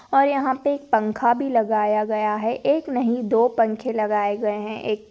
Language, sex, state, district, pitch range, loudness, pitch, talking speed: Hindi, female, Rajasthan, Nagaur, 215-250 Hz, -22 LUFS, 230 Hz, 200 wpm